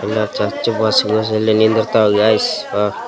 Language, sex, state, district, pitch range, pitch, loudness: Kannada, male, Karnataka, Raichur, 105-110 Hz, 110 Hz, -15 LUFS